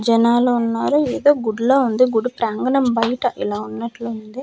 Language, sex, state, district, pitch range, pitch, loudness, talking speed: Telugu, female, Andhra Pradesh, Manyam, 230-255 Hz, 235 Hz, -18 LUFS, 150 wpm